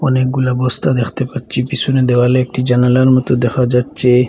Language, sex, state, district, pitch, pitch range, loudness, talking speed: Bengali, male, Assam, Hailakandi, 125 Hz, 125-130 Hz, -14 LUFS, 170 wpm